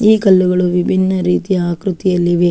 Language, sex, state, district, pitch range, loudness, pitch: Kannada, female, Karnataka, Shimoga, 180-190 Hz, -14 LUFS, 185 Hz